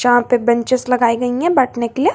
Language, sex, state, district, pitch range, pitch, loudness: Hindi, female, Jharkhand, Garhwa, 240-255 Hz, 245 Hz, -16 LUFS